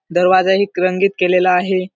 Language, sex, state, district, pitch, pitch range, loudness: Marathi, male, Maharashtra, Dhule, 185 Hz, 180-190 Hz, -15 LUFS